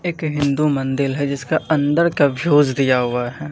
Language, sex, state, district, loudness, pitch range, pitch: Hindi, male, Bihar, Katihar, -18 LUFS, 135-155 Hz, 145 Hz